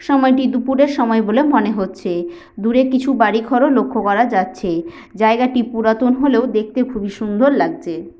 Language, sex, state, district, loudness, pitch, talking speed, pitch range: Bengali, female, West Bengal, Paschim Medinipur, -16 LUFS, 230 Hz, 160 wpm, 210-260 Hz